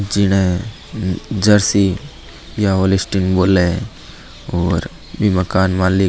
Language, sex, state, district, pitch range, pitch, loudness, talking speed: Marwari, male, Rajasthan, Nagaur, 90-100 Hz, 95 Hz, -16 LUFS, 100 wpm